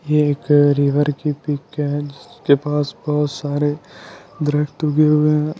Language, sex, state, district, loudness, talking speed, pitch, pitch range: Hindi, male, Delhi, New Delhi, -18 LUFS, 120 wpm, 145 Hz, 145-150 Hz